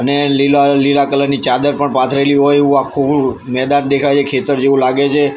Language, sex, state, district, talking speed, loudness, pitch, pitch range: Gujarati, male, Gujarat, Gandhinagar, 190 wpm, -13 LUFS, 140 Hz, 135-140 Hz